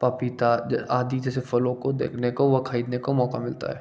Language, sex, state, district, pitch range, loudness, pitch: Hindi, male, Jharkhand, Jamtara, 120-130 Hz, -25 LUFS, 125 Hz